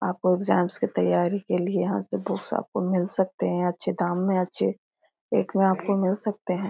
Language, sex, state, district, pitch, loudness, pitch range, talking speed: Hindi, female, Bihar, Jahanabad, 185 Hz, -25 LUFS, 180-195 Hz, 205 wpm